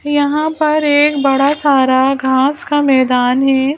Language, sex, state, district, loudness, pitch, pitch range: Hindi, female, Madhya Pradesh, Bhopal, -13 LUFS, 280 Hz, 265-295 Hz